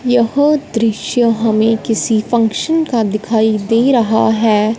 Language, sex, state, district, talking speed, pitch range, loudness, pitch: Hindi, female, Punjab, Fazilka, 125 wpm, 220-240 Hz, -14 LUFS, 225 Hz